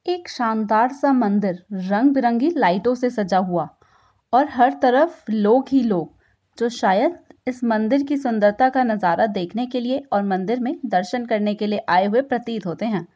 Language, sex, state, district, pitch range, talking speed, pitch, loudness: Hindi, female, Uttar Pradesh, Budaun, 205-255 Hz, 180 wpm, 235 Hz, -20 LUFS